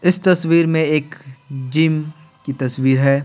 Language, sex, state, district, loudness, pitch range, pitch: Hindi, male, Bihar, Patna, -17 LUFS, 135-160 Hz, 150 Hz